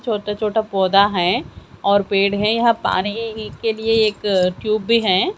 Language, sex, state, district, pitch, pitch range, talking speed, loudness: Hindi, female, Haryana, Jhajjar, 210 Hz, 200-225 Hz, 165 wpm, -18 LUFS